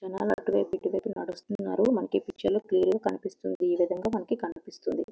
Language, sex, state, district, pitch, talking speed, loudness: Telugu, female, Andhra Pradesh, Visakhapatnam, 190 Hz, 140 wpm, -29 LUFS